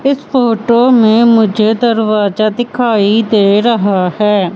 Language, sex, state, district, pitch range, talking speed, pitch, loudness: Hindi, female, Madhya Pradesh, Katni, 210-235 Hz, 120 wpm, 220 Hz, -11 LUFS